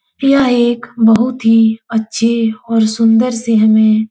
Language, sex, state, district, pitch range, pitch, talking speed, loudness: Hindi, female, Uttar Pradesh, Etah, 220-240 Hz, 225 Hz, 145 wpm, -12 LUFS